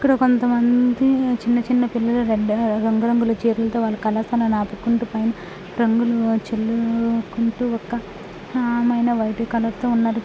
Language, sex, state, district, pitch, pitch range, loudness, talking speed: Telugu, female, Andhra Pradesh, Krishna, 230 Hz, 225-240 Hz, -20 LUFS, 130 wpm